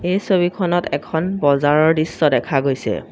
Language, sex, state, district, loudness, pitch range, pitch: Assamese, female, Assam, Sonitpur, -18 LUFS, 140-175 Hz, 160 Hz